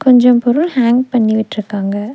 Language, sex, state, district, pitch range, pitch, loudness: Tamil, female, Tamil Nadu, Nilgiris, 215-250 Hz, 240 Hz, -13 LUFS